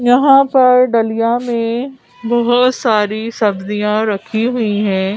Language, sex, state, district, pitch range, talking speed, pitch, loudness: Hindi, female, Madhya Pradesh, Bhopal, 210-245 Hz, 115 wpm, 230 Hz, -14 LUFS